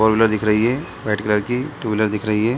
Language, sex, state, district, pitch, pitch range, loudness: Hindi, male, Bihar, Sitamarhi, 110 Hz, 105-115 Hz, -19 LUFS